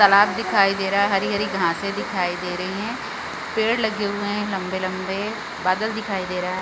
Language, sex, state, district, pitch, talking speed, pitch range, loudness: Hindi, female, Chhattisgarh, Bastar, 200 Hz, 190 wpm, 185-205 Hz, -22 LUFS